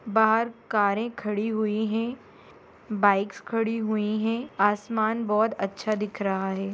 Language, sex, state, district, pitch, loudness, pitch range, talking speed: Bhojpuri, female, Bihar, Saran, 215 Hz, -26 LUFS, 205-225 Hz, 135 wpm